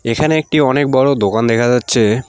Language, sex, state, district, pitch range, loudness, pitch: Bengali, male, West Bengal, Alipurduar, 115-145 Hz, -13 LUFS, 125 Hz